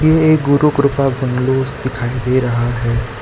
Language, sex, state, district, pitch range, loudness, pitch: Hindi, male, Gujarat, Valsad, 120-140 Hz, -15 LUFS, 130 Hz